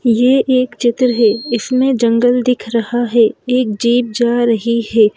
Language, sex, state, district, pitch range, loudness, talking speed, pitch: Hindi, female, Madhya Pradesh, Bhopal, 230-250 Hz, -14 LUFS, 175 wpm, 240 Hz